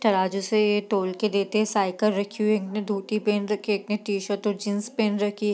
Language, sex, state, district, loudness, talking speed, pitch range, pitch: Hindi, female, Bihar, East Champaran, -25 LUFS, 250 wpm, 200-215 Hz, 210 Hz